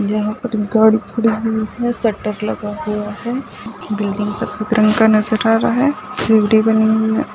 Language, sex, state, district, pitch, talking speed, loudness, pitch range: Hindi, female, Rajasthan, Nagaur, 220 Hz, 170 wpm, -16 LUFS, 210-225 Hz